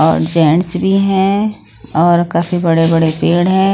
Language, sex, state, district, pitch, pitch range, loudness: Hindi, female, Haryana, Rohtak, 175 Hz, 165-190 Hz, -13 LUFS